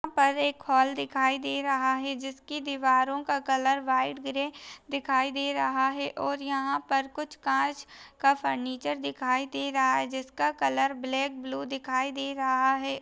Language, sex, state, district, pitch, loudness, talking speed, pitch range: Hindi, female, Uttarakhand, Tehri Garhwal, 270 Hz, -28 LUFS, 170 wpm, 260-280 Hz